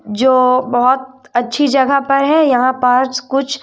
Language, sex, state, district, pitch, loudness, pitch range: Hindi, female, Madhya Pradesh, Umaria, 260 Hz, -14 LUFS, 250-275 Hz